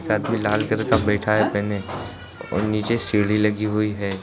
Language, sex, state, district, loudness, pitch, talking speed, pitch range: Hindi, male, Uttar Pradesh, Lucknow, -22 LUFS, 105 Hz, 200 wpm, 100-110 Hz